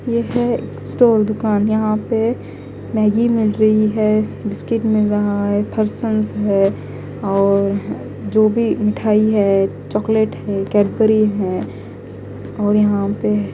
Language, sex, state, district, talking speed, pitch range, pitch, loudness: Hindi, female, Punjab, Kapurthala, 130 wpm, 200-220 Hz, 210 Hz, -17 LUFS